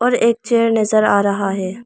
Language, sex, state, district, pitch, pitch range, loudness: Hindi, female, Arunachal Pradesh, Lower Dibang Valley, 215 Hz, 200-235 Hz, -16 LUFS